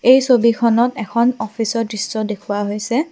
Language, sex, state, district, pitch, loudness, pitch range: Assamese, female, Assam, Kamrup Metropolitan, 230 Hz, -17 LUFS, 215-240 Hz